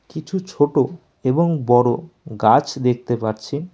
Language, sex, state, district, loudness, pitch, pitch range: Bengali, male, West Bengal, Alipurduar, -19 LUFS, 140 Hz, 120-165 Hz